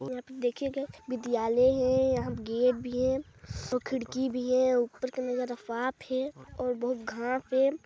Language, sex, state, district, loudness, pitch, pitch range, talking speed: Hindi, female, Chhattisgarh, Sarguja, -30 LUFS, 255 Hz, 245-260 Hz, 145 wpm